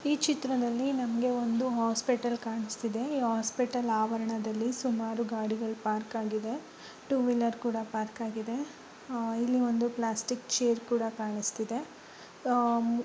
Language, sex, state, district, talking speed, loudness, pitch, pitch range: Kannada, female, Karnataka, Bijapur, 115 wpm, -31 LUFS, 235 Hz, 225-245 Hz